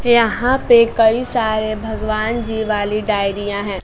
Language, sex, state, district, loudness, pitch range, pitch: Hindi, female, Bihar, West Champaran, -17 LUFS, 210-235 Hz, 220 Hz